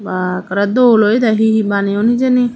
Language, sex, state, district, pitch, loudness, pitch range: Chakma, female, Tripura, Dhalai, 215 Hz, -13 LUFS, 200-235 Hz